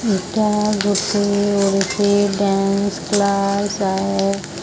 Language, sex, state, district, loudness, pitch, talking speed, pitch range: Odia, male, Odisha, Sambalpur, -18 LUFS, 200 Hz, 90 wpm, 195-205 Hz